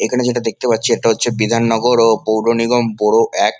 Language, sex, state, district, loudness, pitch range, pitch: Bengali, male, West Bengal, Kolkata, -15 LUFS, 115-120 Hz, 115 Hz